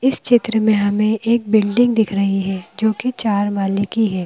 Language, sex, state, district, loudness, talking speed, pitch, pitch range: Hindi, female, Madhya Pradesh, Bhopal, -17 LUFS, 210 wpm, 215 Hz, 200-230 Hz